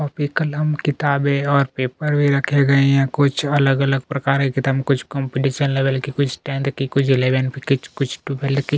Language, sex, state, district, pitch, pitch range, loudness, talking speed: Hindi, male, Chhattisgarh, Kabirdham, 140 Hz, 135-145 Hz, -19 LUFS, 180 wpm